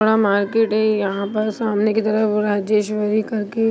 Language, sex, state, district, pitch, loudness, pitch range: Hindi, female, Bihar, Begusarai, 215 Hz, -19 LUFS, 210-220 Hz